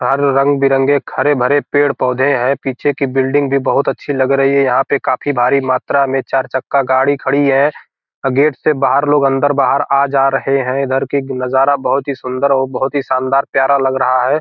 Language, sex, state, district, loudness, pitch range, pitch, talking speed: Hindi, male, Bihar, Gopalganj, -14 LUFS, 130-140 Hz, 135 Hz, 200 wpm